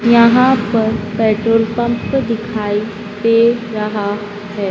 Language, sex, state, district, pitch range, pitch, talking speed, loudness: Hindi, female, Madhya Pradesh, Dhar, 210-235 Hz, 220 Hz, 100 wpm, -15 LUFS